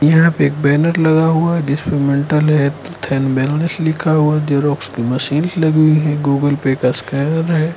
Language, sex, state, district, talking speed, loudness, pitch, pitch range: Hindi, male, Arunachal Pradesh, Lower Dibang Valley, 160 wpm, -15 LUFS, 150 Hz, 140-160 Hz